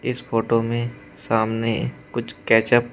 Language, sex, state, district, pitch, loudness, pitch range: Hindi, male, Uttar Pradesh, Shamli, 115 Hz, -22 LUFS, 115-120 Hz